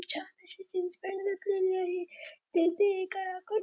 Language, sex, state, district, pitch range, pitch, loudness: Marathi, female, Maharashtra, Dhule, 360-390 Hz, 375 Hz, -32 LUFS